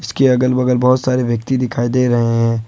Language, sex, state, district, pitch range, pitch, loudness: Hindi, male, Jharkhand, Ranchi, 120-130 Hz, 125 Hz, -15 LUFS